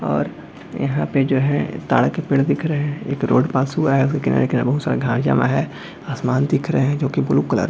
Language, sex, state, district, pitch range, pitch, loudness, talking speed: Hindi, male, Jharkhand, Jamtara, 125-145 Hz, 135 Hz, -19 LUFS, 250 wpm